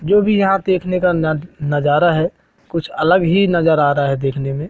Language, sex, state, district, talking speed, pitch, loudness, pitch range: Hindi, male, Madhya Pradesh, Katni, 215 wpm, 165 Hz, -16 LUFS, 145-185 Hz